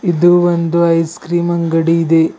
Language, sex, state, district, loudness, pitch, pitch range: Kannada, male, Karnataka, Bidar, -13 LUFS, 170 Hz, 165-175 Hz